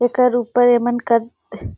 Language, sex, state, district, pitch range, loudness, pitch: Surgujia, female, Chhattisgarh, Sarguja, 240-245 Hz, -17 LUFS, 245 Hz